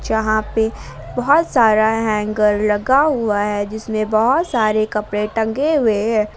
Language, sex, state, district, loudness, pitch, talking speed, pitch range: Hindi, female, Jharkhand, Garhwa, -17 LUFS, 220 Hz, 140 wpm, 210-230 Hz